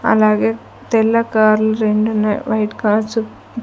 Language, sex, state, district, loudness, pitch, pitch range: Telugu, female, Andhra Pradesh, Sri Satya Sai, -16 LUFS, 215 Hz, 210-220 Hz